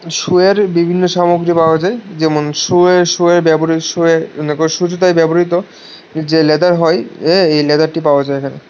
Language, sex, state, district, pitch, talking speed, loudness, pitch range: Bengali, male, Tripura, West Tripura, 165 Hz, 150 wpm, -12 LUFS, 160-175 Hz